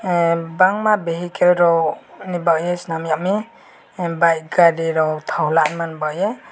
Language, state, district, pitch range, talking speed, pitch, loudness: Kokborok, Tripura, West Tripura, 165-180 Hz, 120 wpm, 170 Hz, -18 LUFS